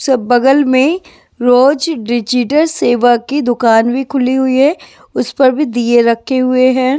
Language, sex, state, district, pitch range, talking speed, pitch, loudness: Hindi, female, Bihar, West Champaran, 245-275 Hz, 165 wpm, 255 Hz, -12 LUFS